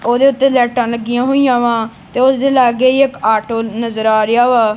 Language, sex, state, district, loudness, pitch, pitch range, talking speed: Punjabi, female, Punjab, Kapurthala, -13 LUFS, 240 Hz, 225-260 Hz, 200 wpm